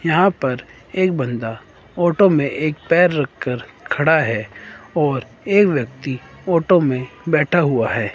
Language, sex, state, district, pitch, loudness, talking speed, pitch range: Hindi, female, Himachal Pradesh, Shimla, 150 Hz, -18 LUFS, 140 wpm, 125-170 Hz